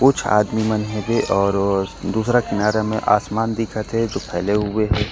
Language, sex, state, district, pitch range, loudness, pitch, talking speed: Chhattisgarhi, male, Chhattisgarh, Korba, 105-110 Hz, -20 LUFS, 105 Hz, 175 wpm